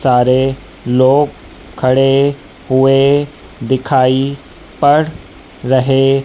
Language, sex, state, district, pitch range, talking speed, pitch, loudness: Hindi, female, Madhya Pradesh, Dhar, 130-140 Hz, 65 wpm, 135 Hz, -13 LUFS